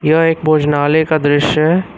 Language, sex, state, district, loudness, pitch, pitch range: Hindi, male, Uttar Pradesh, Lucknow, -13 LUFS, 155 Hz, 150-160 Hz